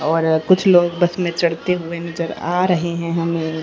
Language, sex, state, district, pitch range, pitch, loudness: Hindi, female, Haryana, Rohtak, 165-175 Hz, 170 Hz, -18 LUFS